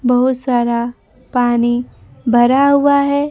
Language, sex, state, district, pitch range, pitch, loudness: Hindi, female, Bihar, Kaimur, 240-280 Hz, 250 Hz, -14 LUFS